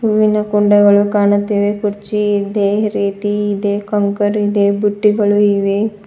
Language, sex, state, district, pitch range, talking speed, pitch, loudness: Kannada, female, Karnataka, Bidar, 205-210 Hz, 110 wpm, 205 Hz, -14 LUFS